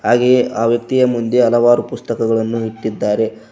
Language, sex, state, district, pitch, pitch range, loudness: Kannada, male, Karnataka, Koppal, 115 Hz, 110-120 Hz, -15 LUFS